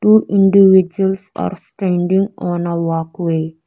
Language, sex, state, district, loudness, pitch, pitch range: English, female, Arunachal Pradesh, Lower Dibang Valley, -15 LUFS, 185 Hz, 170-195 Hz